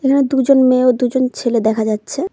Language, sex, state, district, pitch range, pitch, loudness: Bengali, female, West Bengal, Cooch Behar, 240-270 Hz, 255 Hz, -15 LUFS